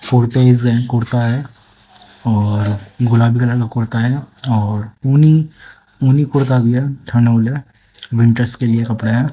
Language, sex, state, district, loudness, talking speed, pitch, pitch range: Hindi, male, Haryana, Jhajjar, -15 LUFS, 105 wpm, 120 Hz, 110-130 Hz